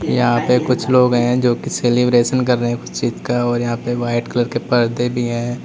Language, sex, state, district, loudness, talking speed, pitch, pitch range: Hindi, male, Uttar Pradesh, Lalitpur, -17 LUFS, 245 wpm, 120 Hz, 120-125 Hz